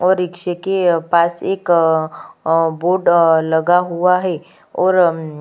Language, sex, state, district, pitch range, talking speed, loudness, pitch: Hindi, female, Chhattisgarh, Kabirdham, 160-180 Hz, 145 wpm, -16 LUFS, 175 Hz